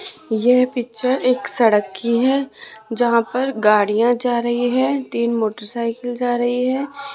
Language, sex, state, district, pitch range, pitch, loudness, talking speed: Hindi, female, Rajasthan, Jaipur, 230-255 Hz, 245 Hz, -19 LUFS, 145 wpm